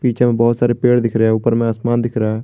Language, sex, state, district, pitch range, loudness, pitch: Hindi, male, Jharkhand, Garhwa, 115-120 Hz, -16 LUFS, 120 Hz